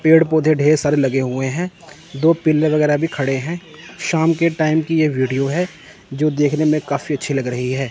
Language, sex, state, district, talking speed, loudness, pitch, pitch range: Hindi, male, Chandigarh, Chandigarh, 210 wpm, -18 LUFS, 155 Hz, 140-160 Hz